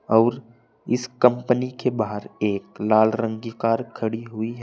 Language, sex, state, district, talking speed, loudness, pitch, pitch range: Hindi, male, Uttar Pradesh, Saharanpur, 170 wpm, -23 LUFS, 115 Hz, 110-120 Hz